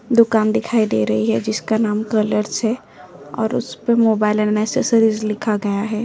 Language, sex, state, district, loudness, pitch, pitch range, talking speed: Hindi, female, Maharashtra, Chandrapur, -18 LUFS, 215 Hz, 210-225 Hz, 170 wpm